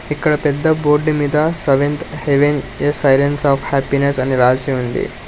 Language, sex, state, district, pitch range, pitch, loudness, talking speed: Telugu, male, Telangana, Hyderabad, 140-150 Hz, 145 Hz, -16 LUFS, 150 wpm